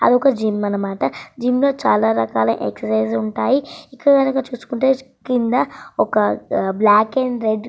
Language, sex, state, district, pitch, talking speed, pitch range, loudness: Telugu, female, Andhra Pradesh, Srikakulam, 240 Hz, 140 wpm, 195-265 Hz, -18 LUFS